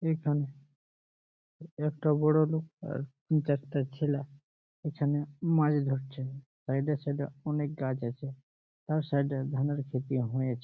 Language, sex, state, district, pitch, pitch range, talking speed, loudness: Bengali, male, West Bengal, Jalpaiguri, 145 Hz, 135-150 Hz, 135 wpm, -32 LUFS